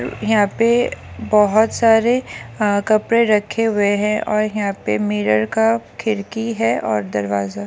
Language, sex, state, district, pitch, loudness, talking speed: Hindi, male, Bihar, Jamui, 210 Hz, -18 LUFS, 150 wpm